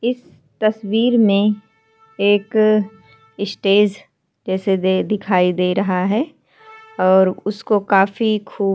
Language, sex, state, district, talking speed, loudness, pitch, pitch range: Hindi, female, Uttarakhand, Tehri Garhwal, 110 wpm, -17 LUFS, 205 Hz, 195-220 Hz